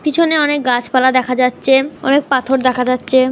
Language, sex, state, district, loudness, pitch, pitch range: Bengali, female, West Bengal, Jhargram, -14 LUFS, 260 Hz, 255-285 Hz